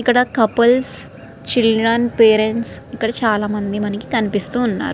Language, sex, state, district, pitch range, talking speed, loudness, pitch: Telugu, female, Andhra Pradesh, Srikakulam, 215-240 Hz, 85 wpm, -17 LUFS, 225 Hz